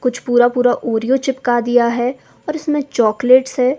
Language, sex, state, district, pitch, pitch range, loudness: Hindi, female, Himachal Pradesh, Shimla, 250 Hz, 240-265 Hz, -16 LUFS